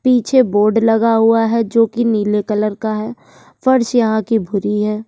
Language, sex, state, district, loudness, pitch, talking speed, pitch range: Hindi, female, Uttar Pradesh, Jyotiba Phule Nagar, -15 LUFS, 225 Hz, 175 wpm, 210-230 Hz